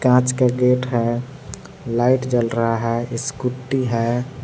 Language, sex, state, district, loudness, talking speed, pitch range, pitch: Hindi, male, Jharkhand, Palamu, -20 LUFS, 135 wpm, 120-130 Hz, 125 Hz